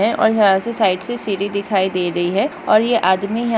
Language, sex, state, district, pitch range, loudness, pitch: Hindi, female, Maharashtra, Dhule, 190-225 Hz, -17 LUFS, 200 Hz